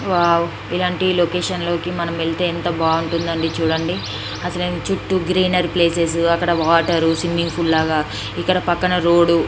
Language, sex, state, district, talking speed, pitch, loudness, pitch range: Telugu, female, Andhra Pradesh, Srikakulam, 140 wpm, 170 Hz, -18 LUFS, 165-180 Hz